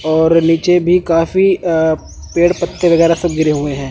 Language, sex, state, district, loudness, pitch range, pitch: Hindi, male, Chandigarh, Chandigarh, -13 LUFS, 160-175 Hz, 165 Hz